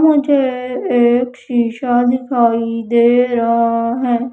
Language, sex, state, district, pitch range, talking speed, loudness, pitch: Hindi, female, Madhya Pradesh, Umaria, 235-250 Hz, 95 wpm, -15 LUFS, 245 Hz